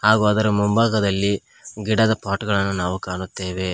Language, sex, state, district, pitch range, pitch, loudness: Kannada, male, Karnataka, Koppal, 95-110 Hz, 100 Hz, -20 LUFS